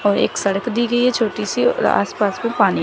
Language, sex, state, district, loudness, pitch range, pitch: Hindi, female, Chandigarh, Chandigarh, -18 LUFS, 200-235 Hz, 215 Hz